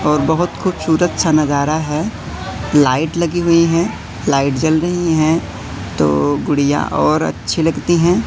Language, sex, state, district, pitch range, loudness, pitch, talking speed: Hindi, male, Madhya Pradesh, Katni, 140-170 Hz, -16 LUFS, 155 Hz, 145 wpm